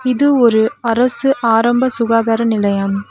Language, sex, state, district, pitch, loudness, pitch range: Tamil, female, Tamil Nadu, Nilgiris, 230 Hz, -14 LUFS, 225-255 Hz